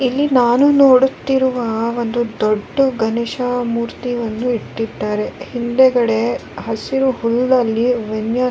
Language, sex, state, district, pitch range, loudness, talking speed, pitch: Kannada, female, Karnataka, Raichur, 230-255 Hz, -17 LUFS, 85 wpm, 240 Hz